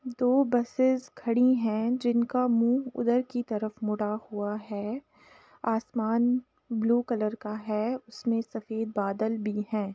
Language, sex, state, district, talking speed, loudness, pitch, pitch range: Hindi, female, Uttar Pradesh, Jalaun, 135 wpm, -28 LUFS, 230 Hz, 215-245 Hz